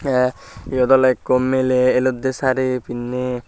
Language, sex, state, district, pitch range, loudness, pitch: Chakma, male, Tripura, Dhalai, 125-130 Hz, -18 LUFS, 130 Hz